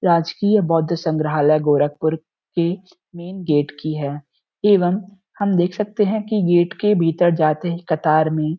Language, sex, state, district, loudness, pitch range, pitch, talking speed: Hindi, male, Uttar Pradesh, Gorakhpur, -19 LUFS, 155-190 Hz, 170 Hz, 160 wpm